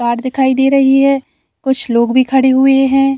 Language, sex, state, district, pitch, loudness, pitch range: Hindi, female, Bihar, Saran, 265 Hz, -12 LUFS, 260-270 Hz